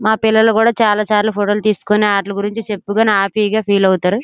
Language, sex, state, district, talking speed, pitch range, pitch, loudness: Telugu, female, Andhra Pradesh, Srikakulam, 200 wpm, 200-220 Hz, 210 Hz, -14 LUFS